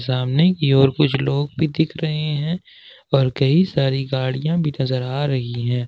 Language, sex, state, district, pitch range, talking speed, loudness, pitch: Hindi, male, Jharkhand, Ranchi, 130-155 Hz, 185 wpm, -20 LUFS, 140 Hz